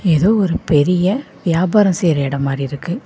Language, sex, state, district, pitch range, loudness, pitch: Tamil, female, Tamil Nadu, Namakkal, 145-190 Hz, -16 LUFS, 175 Hz